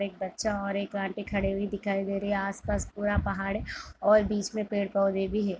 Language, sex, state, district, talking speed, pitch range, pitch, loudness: Hindi, female, Jharkhand, Jamtara, 245 wpm, 195-205 Hz, 200 Hz, -29 LUFS